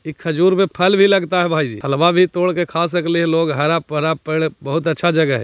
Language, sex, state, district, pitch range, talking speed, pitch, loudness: Hindi, male, Bihar, Jahanabad, 155-180 Hz, 255 wpm, 165 Hz, -17 LUFS